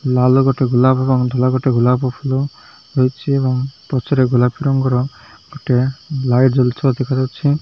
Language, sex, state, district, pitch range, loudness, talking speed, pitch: Odia, male, Odisha, Malkangiri, 125-135 Hz, -16 LUFS, 140 wpm, 130 Hz